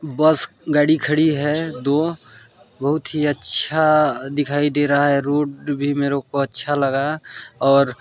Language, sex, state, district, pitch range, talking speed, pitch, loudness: Hindi, male, Chhattisgarh, Balrampur, 140-150 Hz, 140 wpm, 145 Hz, -18 LUFS